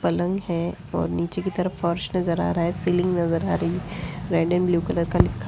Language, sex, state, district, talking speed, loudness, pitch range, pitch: Hindi, female, Bihar, Jahanabad, 275 wpm, -24 LUFS, 165-180 Hz, 170 Hz